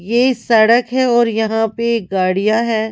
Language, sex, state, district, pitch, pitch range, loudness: Hindi, female, Punjab, Pathankot, 225 Hz, 220-235 Hz, -15 LUFS